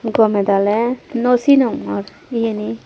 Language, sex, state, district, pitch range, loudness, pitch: Chakma, female, Tripura, Dhalai, 200-245 Hz, -17 LUFS, 225 Hz